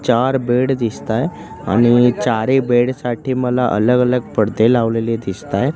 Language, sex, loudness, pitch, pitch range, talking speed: Marathi, male, -16 LUFS, 125 Hz, 115-130 Hz, 135 wpm